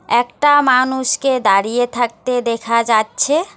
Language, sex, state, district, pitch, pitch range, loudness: Bengali, female, West Bengal, Alipurduar, 245 Hz, 230-265 Hz, -15 LUFS